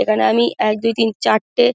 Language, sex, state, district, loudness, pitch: Bengali, female, West Bengal, Dakshin Dinajpur, -17 LUFS, 215 Hz